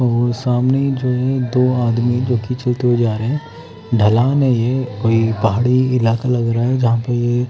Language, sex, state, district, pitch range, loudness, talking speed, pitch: Hindi, male, Himachal Pradesh, Shimla, 115-125 Hz, -16 LUFS, 210 wpm, 125 Hz